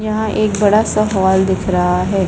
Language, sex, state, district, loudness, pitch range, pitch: Hindi, female, Chhattisgarh, Bilaspur, -15 LUFS, 190-215 Hz, 200 Hz